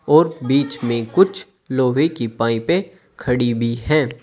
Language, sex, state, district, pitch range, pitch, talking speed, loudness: Hindi, male, Uttar Pradesh, Saharanpur, 120-160 Hz, 130 Hz, 140 wpm, -19 LUFS